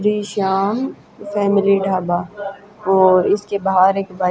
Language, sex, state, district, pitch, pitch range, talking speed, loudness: Hindi, female, Haryana, Jhajjar, 195 Hz, 190-205 Hz, 125 wpm, -17 LUFS